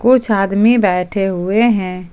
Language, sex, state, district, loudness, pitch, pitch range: Hindi, male, Jharkhand, Ranchi, -14 LUFS, 200 Hz, 185-225 Hz